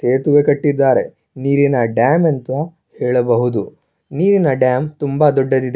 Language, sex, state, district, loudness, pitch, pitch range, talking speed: Kannada, male, Karnataka, Shimoga, -15 LUFS, 140 Hz, 125-150 Hz, 105 wpm